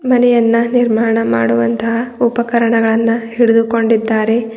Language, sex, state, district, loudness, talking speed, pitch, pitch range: Kannada, female, Karnataka, Bidar, -13 LUFS, 65 wpm, 230 Hz, 225-235 Hz